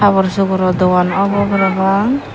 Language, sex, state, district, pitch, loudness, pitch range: Chakma, female, Tripura, Dhalai, 195 Hz, -14 LUFS, 185-200 Hz